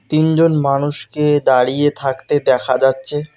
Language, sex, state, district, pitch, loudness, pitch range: Bengali, male, West Bengal, Alipurduar, 145 Hz, -15 LUFS, 135-150 Hz